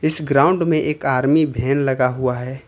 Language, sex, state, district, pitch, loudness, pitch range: Hindi, male, Jharkhand, Ranchi, 140 Hz, -18 LUFS, 130-155 Hz